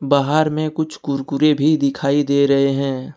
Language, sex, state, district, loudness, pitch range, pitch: Hindi, male, Jharkhand, Ranchi, -18 LUFS, 140-155 Hz, 140 Hz